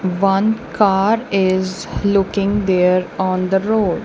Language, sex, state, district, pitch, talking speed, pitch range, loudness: English, female, Punjab, Kapurthala, 195 Hz, 120 wpm, 185-205 Hz, -17 LUFS